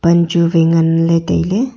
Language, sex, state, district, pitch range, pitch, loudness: Wancho, female, Arunachal Pradesh, Longding, 165-170 Hz, 170 Hz, -13 LUFS